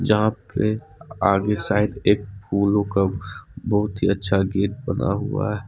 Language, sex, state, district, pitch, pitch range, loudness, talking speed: Hindi, male, Jharkhand, Deoghar, 105 Hz, 100-110 Hz, -22 LUFS, 150 wpm